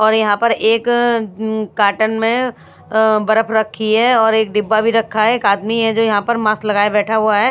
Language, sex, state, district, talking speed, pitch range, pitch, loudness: Hindi, female, Bihar, Patna, 225 wpm, 215-225 Hz, 220 Hz, -15 LUFS